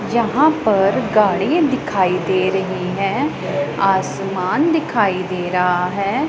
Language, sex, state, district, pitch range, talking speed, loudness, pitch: Hindi, female, Punjab, Pathankot, 185-235 Hz, 115 wpm, -17 LUFS, 195 Hz